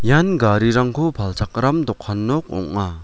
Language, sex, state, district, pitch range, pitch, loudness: Garo, male, Meghalaya, West Garo Hills, 100-140 Hz, 115 Hz, -19 LUFS